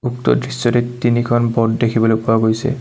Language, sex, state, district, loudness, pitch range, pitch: Assamese, male, Assam, Kamrup Metropolitan, -16 LUFS, 115-120 Hz, 120 Hz